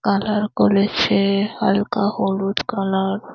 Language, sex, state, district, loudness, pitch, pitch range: Bengali, female, West Bengal, Cooch Behar, -19 LUFS, 200 Hz, 195-210 Hz